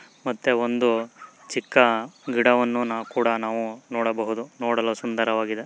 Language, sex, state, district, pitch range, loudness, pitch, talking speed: Kannada, male, Karnataka, Mysore, 115-120 Hz, -24 LUFS, 115 Hz, 115 wpm